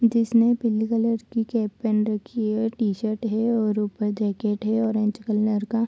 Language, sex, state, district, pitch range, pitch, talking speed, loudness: Hindi, female, Bihar, Kishanganj, 215-230 Hz, 220 Hz, 185 wpm, -24 LUFS